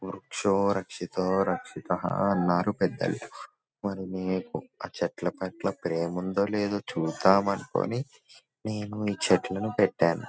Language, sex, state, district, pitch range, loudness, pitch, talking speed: Telugu, male, Telangana, Nalgonda, 95-100 Hz, -28 LUFS, 95 Hz, 115 wpm